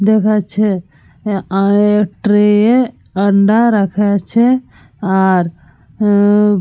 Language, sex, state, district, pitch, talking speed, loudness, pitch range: Bengali, female, Jharkhand, Jamtara, 205 Hz, 80 wpm, -13 LUFS, 195-215 Hz